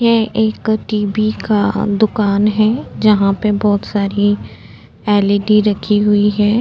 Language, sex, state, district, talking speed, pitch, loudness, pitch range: Hindi, female, Uttarakhand, Tehri Garhwal, 125 wpm, 210 Hz, -15 LUFS, 205-215 Hz